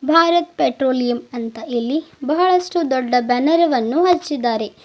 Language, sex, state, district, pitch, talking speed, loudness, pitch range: Kannada, female, Karnataka, Bidar, 275 Hz, 110 wpm, -18 LUFS, 245-335 Hz